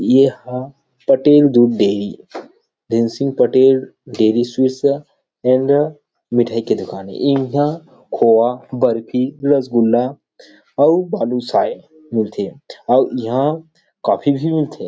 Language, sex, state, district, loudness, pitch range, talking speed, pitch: Chhattisgarhi, male, Chhattisgarh, Rajnandgaon, -16 LUFS, 120-145 Hz, 115 wpm, 130 Hz